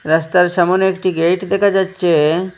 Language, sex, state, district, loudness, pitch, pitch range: Bengali, male, Assam, Hailakandi, -15 LUFS, 180 Hz, 170-190 Hz